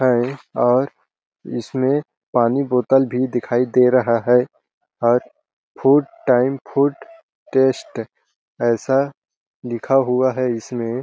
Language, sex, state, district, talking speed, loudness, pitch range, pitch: Hindi, male, Chhattisgarh, Balrampur, 115 wpm, -19 LUFS, 120-135 Hz, 125 Hz